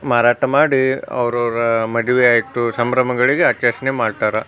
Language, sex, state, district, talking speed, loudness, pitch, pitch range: Kannada, male, Karnataka, Bijapur, 105 wpm, -16 LUFS, 120 Hz, 115-125 Hz